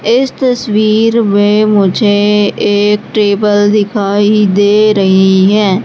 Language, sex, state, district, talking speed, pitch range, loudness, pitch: Hindi, female, Madhya Pradesh, Katni, 100 wpm, 205-215 Hz, -10 LUFS, 210 Hz